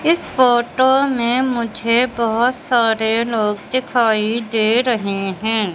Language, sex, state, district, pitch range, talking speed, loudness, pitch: Hindi, male, Madhya Pradesh, Katni, 220-255 Hz, 115 wpm, -17 LUFS, 235 Hz